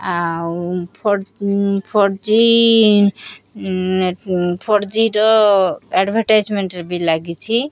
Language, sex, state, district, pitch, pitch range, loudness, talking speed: Odia, female, Odisha, Khordha, 200 Hz, 180-215 Hz, -16 LUFS, 100 wpm